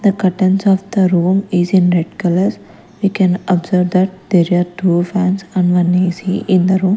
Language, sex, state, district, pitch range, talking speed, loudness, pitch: English, female, Punjab, Kapurthala, 180-190 Hz, 200 wpm, -14 LUFS, 185 Hz